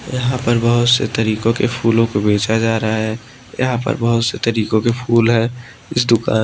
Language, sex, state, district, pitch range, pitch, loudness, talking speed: Hindi, male, Maharashtra, Washim, 110-120 Hz, 115 Hz, -16 LUFS, 215 wpm